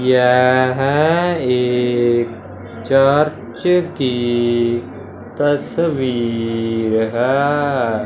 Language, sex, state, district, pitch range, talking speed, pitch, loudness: Hindi, male, Punjab, Fazilka, 120-140 Hz, 45 wpm, 125 Hz, -16 LUFS